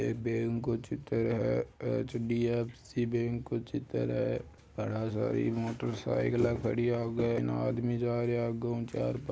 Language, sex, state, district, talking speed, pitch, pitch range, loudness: Marwari, male, Rajasthan, Churu, 165 wpm, 115 Hz, 110-120 Hz, -33 LUFS